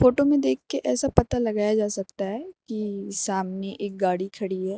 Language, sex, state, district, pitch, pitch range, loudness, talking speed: Hindi, female, Uttar Pradesh, Lucknow, 200 Hz, 195-220 Hz, -25 LUFS, 200 wpm